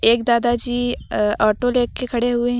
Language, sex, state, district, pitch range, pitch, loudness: Hindi, female, Uttar Pradesh, Lucknow, 235-245 Hz, 240 Hz, -19 LUFS